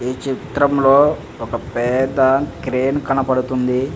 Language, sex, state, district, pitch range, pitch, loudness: Telugu, male, Andhra Pradesh, Visakhapatnam, 125-135 Hz, 130 Hz, -17 LUFS